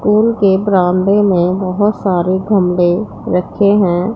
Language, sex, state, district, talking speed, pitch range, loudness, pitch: Hindi, female, Punjab, Pathankot, 130 wpm, 180-205 Hz, -13 LUFS, 190 Hz